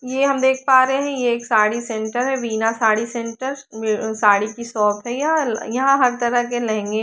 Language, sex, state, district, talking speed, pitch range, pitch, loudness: Hindi, female, Chandigarh, Chandigarh, 205 wpm, 220-260 Hz, 240 Hz, -19 LUFS